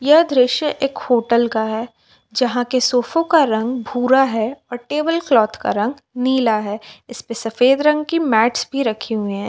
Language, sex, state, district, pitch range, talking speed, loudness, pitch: Hindi, female, Jharkhand, Palamu, 225-275 Hz, 190 wpm, -18 LUFS, 245 Hz